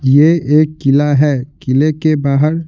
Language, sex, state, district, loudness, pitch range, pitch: Hindi, male, Bihar, Patna, -13 LUFS, 140-155 Hz, 150 Hz